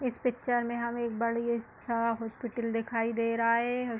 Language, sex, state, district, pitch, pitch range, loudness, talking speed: Hindi, female, Uttar Pradesh, Hamirpur, 235 Hz, 230-240 Hz, -31 LUFS, 210 wpm